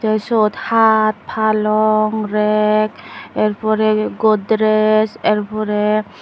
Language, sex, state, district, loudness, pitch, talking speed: Chakma, female, Tripura, Dhalai, -16 LUFS, 215 Hz, 75 wpm